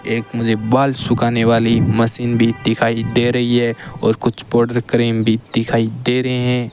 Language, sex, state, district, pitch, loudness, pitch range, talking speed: Hindi, male, Rajasthan, Bikaner, 120 Hz, -16 LUFS, 115-120 Hz, 180 wpm